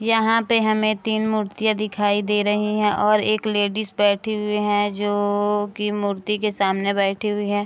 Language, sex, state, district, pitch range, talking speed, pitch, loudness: Hindi, female, Bihar, Araria, 205-215 Hz, 180 wpm, 210 Hz, -21 LUFS